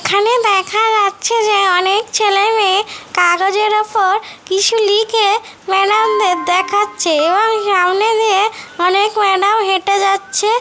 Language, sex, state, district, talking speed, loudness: Bengali, female, West Bengal, Jhargram, 115 wpm, -13 LUFS